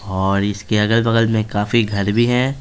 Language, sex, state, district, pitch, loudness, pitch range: Hindi, male, Bihar, Patna, 110 Hz, -17 LUFS, 100-115 Hz